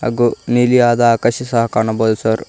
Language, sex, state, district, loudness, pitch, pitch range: Kannada, male, Karnataka, Koppal, -14 LUFS, 115 Hz, 110-120 Hz